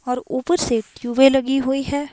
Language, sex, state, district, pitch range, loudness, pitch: Hindi, female, Himachal Pradesh, Shimla, 250-275 Hz, -19 LUFS, 270 Hz